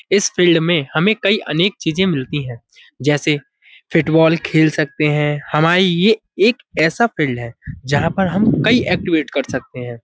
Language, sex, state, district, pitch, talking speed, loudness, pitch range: Hindi, male, Uttar Pradesh, Budaun, 160 Hz, 165 wpm, -16 LUFS, 145-185 Hz